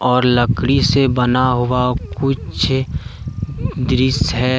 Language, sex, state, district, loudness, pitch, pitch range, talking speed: Hindi, male, Jharkhand, Deoghar, -17 LUFS, 125 Hz, 120-130 Hz, 120 wpm